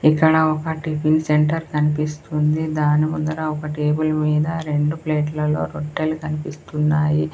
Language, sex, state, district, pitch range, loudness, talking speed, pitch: Telugu, female, Telangana, Komaram Bheem, 150-155 Hz, -20 LUFS, 125 wpm, 155 Hz